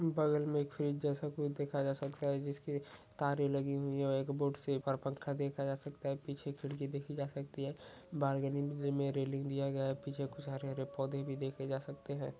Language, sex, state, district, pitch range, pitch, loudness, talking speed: Hindi, male, Maharashtra, Solapur, 135-145 Hz, 140 Hz, -38 LUFS, 215 wpm